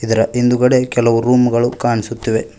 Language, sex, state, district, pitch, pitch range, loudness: Kannada, male, Karnataka, Koppal, 120 Hz, 115-125 Hz, -15 LUFS